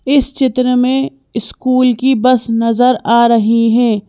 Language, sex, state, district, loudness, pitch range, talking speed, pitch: Hindi, female, Madhya Pradesh, Bhopal, -12 LUFS, 230-260 Hz, 145 wpm, 250 Hz